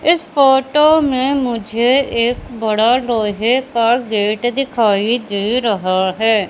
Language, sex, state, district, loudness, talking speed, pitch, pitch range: Hindi, female, Madhya Pradesh, Katni, -15 LUFS, 120 wpm, 235 Hz, 220-265 Hz